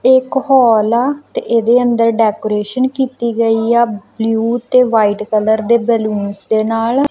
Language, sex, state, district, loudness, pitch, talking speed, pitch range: Punjabi, female, Punjab, Kapurthala, -14 LUFS, 230 Hz, 150 wpm, 220-245 Hz